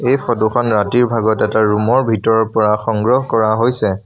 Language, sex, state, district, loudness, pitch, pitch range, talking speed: Assamese, male, Assam, Sonitpur, -15 LUFS, 110 Hz, 110-120 Hz, 190 wpm